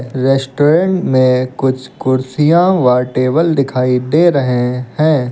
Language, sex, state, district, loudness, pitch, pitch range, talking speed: Hindi, male, Uttar Pradesh, Lucknow, -13 LUFS, 130 Hz, 125-155 Hz, 115 wpm